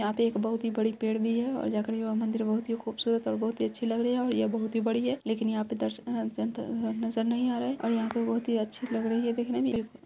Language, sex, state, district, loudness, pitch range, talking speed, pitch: Hindi, female, Bihar, Araria, -30 LUFS, 220-235 Hz, 255 wpm, 225 Hz